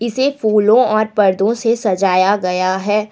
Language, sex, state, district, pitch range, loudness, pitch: Hindi, female, Jharkhand, Deoghar, 195-230 Hz, -15 LUFS, 210 Hz